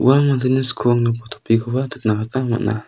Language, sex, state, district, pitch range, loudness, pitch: Garo, male, Meghalaya, South Garo Hills, 110-130 Hz, -19 LUFS, 120 Hz